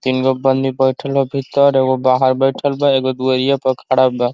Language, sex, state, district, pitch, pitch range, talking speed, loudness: Bhojpuri, male, Uttar Pradesh, Ghazipur, 130 Hz, 130-135 Hz, 195 wpm, -15 LUFS